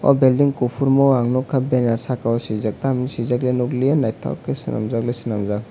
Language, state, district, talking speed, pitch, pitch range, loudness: Kokborok, Tripura, West Tripura, 190 wpm, 125 Hz, 115-135 Hz, -20 LUFS